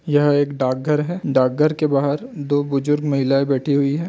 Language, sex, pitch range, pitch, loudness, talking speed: Chhattisgarhi, male, 140-150 Hz, 145 Hz, -19 LUFS, 190 wpm